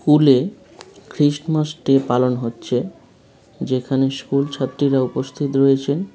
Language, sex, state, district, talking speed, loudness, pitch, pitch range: Bengali, male, West Bengal, Kolkata, 115 wpm, -19 LUFS, 135 Hz, 130-145 Hz